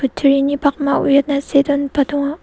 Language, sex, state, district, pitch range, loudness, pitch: Garo, female, Meghalaya, South Garo Hills, 280-285 Hz, -16 LUFS, 280 Hz